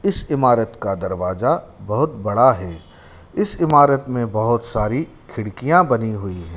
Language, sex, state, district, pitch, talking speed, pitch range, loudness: Hindi, male, Madhya Pradesh, Dhar, 120 Hz, 145 wpm, 100-145 Hz, -19 LUFS